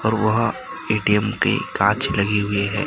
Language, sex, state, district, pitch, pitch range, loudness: Hindi, male, Maharashtra, Gondia, 105 Hz, 100-110 Hz, -20 LUFS